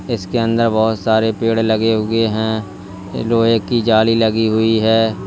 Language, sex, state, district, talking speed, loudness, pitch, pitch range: Hindi, male, Uttar Pradesh, Lalitpur, 160 wpm, -16 LUFS, 110 Hz, 110-115 Hz